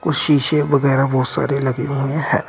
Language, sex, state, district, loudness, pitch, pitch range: Hindi, male, Uttar Pradesh, Shamli, -18 LUFS, 140 Hz, 135-150 Hz